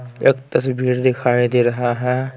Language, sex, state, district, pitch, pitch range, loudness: Hindi, male, Bihar, Patna, 125 Hz, 125-130 Hz, -18 LUFS